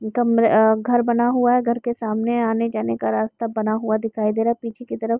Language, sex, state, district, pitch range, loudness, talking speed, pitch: Hindi, female, Uttar Pradesh, Gorakhpur, 220-235 Hz, -20 LUFS, 255 wpm, 230 Hz